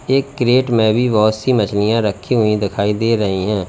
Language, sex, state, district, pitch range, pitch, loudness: Hindi, male, Uttar Pradesh, Lalitpur, 105-120 Hz, 110 Hz, -16 LUFS